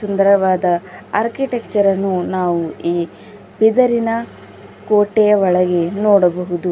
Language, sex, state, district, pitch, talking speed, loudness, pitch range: Kannada, female, Karnataka, Bidar, 195 Hz, 80 wpm, -16 LUFS, 180-215 Hz